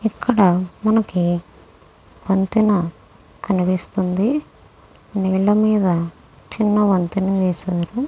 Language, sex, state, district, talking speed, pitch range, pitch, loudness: Telugu, female, Andhra Pradesh, Krishna, 65 wpm, 180-210 Hz, 195 Hz, -19 LUFS